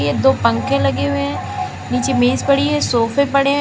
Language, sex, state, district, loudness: Hindi, female, Uttar Pradesh, Lalitpur, -17 LUFS